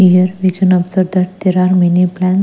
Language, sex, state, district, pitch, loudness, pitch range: English, female, Punjab, Kapurthala, 185 Hz, -13 LUFS, 180-185 Hz